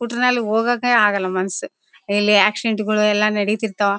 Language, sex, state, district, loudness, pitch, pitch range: Kannada, female, Karnataka, Bellary, -18 LUFS, 215 Hz, 205-230 Hz